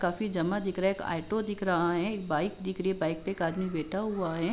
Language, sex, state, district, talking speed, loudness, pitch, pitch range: Hindi, female, Uttar Pradesh, Jalaun, 275 wpm, -31 LUFS, 185 Hz, 170-195 Hz